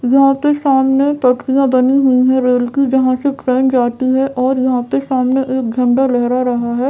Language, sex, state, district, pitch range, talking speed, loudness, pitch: Hindi, female, Bihar, Jamui, 250-270 Hz, 200 wpm, -14 LUFS, 260 Hz